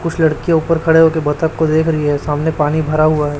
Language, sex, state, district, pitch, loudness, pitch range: Hindi, male, Chhattisgarh, Raipur, 160 Hz, -14 LUFS, 150-160 Hz